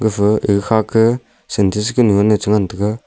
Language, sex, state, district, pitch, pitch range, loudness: Wancho, male, Arunachal Pradesh, Longding, 105 Hz, 100-110 Hz, -15 LUFS